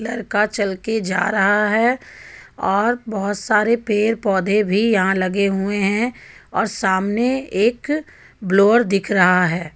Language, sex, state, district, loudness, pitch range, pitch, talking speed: Hindi, female, Jharkhand, Ranchi, -18 LUFS, 195-225 Hz, 210 Hz, 140 wpm